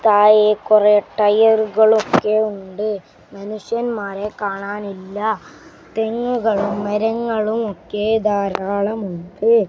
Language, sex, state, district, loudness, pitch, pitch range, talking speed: Malayalam, male, Kerala, Kasaragod, -18 LUFS, 210 Hz, 200-220 Hz, 60 wpm